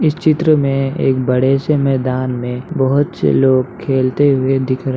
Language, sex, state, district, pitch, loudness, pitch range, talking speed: Hindi, male, Bihar, Muzaffarpur, 135 Hz, -15 LUFS, 130-140 Hz, 195 wpm